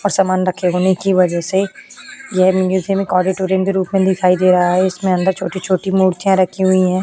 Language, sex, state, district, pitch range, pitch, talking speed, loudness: Hindi, female, Uttar Pradesh, Jyotiba Phule Nagar, 185-190 Hz, 185 Hz, 220 wpm, -15 LUFS